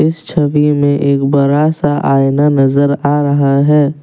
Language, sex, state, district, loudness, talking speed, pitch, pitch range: Hindi, male, Assam, Kamrup Metropolitan, -12 LUFS, 165 wpm, 145 Hz, 140-150 Hz